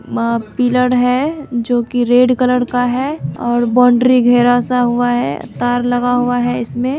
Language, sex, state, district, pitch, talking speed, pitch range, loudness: Hindi, female, Bihar, Begusarai, 245 Hz, 165 wpm, 245-250 Hz, -14 LUFS